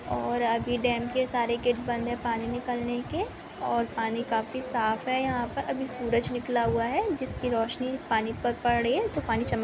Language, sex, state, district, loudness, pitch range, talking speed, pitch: Hindi, female, Chhattisgarh, Bilaspur, -29 LUFS, 230-250 Hz, 205 wpm, 240 Hz